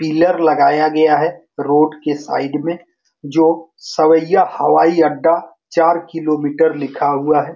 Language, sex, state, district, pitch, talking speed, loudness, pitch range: Hindi, male, Bihar, Saran, 160 Hz, 145 wpm, -15 LUFS, 150-165 Hz